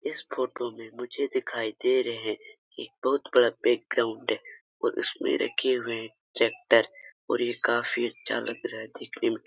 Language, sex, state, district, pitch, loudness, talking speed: Hindi, male, Jharkhand, Sahebganj, 125 Hz, -28 LUFS, 175 wpm